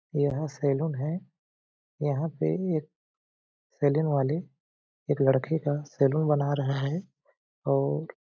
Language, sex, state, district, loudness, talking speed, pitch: Hindi, male, Chhattisgarh, Balrampur, -28 LUFS, 125 wpm, 140 Hz